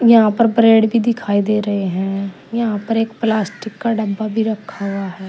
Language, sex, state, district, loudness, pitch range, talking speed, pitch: Hindi, female, Uttar Pradesh, Saharanpur, -17 LUFS, 200-225 Hz, 205 wpm, 220 Hz